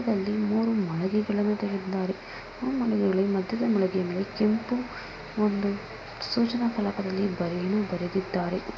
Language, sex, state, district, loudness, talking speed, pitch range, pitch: Kannada, female, Karnataka, Mysore, -28 LUFS, 80 wpm, 190-215 Hz, 200 Hz